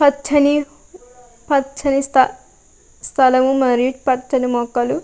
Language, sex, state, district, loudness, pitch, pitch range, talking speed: Telugu, female, Andhra Pradesh, Krishna, -17 LUFS, 265 Hz, 250-285 Hz, 70 wpm